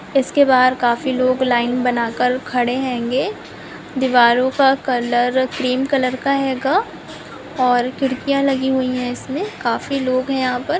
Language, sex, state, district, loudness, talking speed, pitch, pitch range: Hindi, female, Chhattisgarh, Korba, -18 LUFS, 150 wpm, 255 Hz, 250-270 Hz